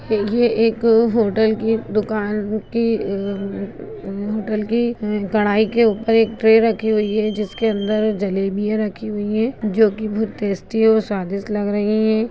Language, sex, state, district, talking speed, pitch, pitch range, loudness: Hindi, female, Bihar, Begusarai, 145 wpm, 215 Hz, 205-225 Hz, -19 LUFS